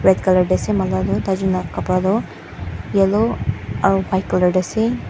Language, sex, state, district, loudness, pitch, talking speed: Nagamese, female, Mizoram, Aizawl, -18 LUFS, 185 Hz, 210 wpm